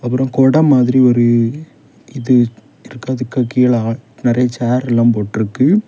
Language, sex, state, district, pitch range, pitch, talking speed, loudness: Tamil, male, Tamil Nadu, Kanyakumari, 120-130 Hz, 125 Hz, 130 wpm, -14 LUFS